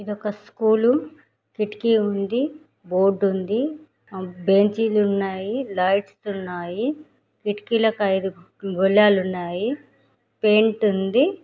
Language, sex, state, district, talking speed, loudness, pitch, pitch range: Telugu, female, Andhra Pradesh, Krishna, 85 wpm, -22 LUFS, 210 Hz, 195-225 Hz